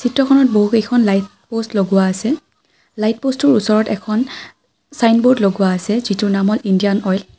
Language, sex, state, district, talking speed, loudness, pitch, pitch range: Assamese, female, Assam, Kamrup Metropolitan, 170 wpm, -16 LUFS, 215 Hz, 200-245 Hz